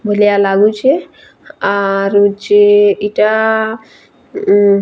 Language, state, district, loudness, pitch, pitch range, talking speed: Sambalpuri, Odisha, Sambalpur, -12 LUFS, 205 Hz, 200-220 Hz, 85 wpm